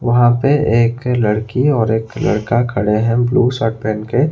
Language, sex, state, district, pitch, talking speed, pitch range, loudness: Hindi, male, Odisha, Khordha, 120 Hz, 180 wpm, 110-125 Hz, -15 LUFS